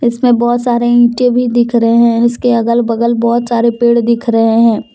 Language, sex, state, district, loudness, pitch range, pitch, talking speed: Hindi, female, Jharkhand, Deoghar, -11 LUFS, 235-240 Hz, 235 Hz, 205 wpm